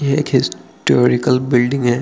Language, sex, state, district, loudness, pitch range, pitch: Hindi, male, Bihar, Araria, -16 LUFS, 125-135 Hz, 125 Hz